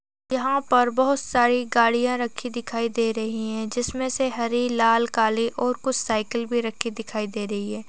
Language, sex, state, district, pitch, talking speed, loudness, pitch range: Hindi, female, Bihar, Purnia, 235 Hz, 180 wpm, -23 LUFS, 225-245 Hz